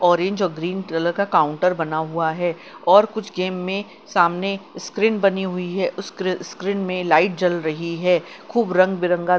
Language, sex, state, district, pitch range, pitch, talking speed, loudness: Hindi, female, Chandigarh, Chandigarh, 170-195 Hz, 180 Hz, 180 wpm, -21 LUFS